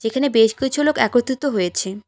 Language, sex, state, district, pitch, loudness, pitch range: Bengali, female, West Bengal, Alipurduar, 240 Hz, -18 LUFS, 220-275 Hz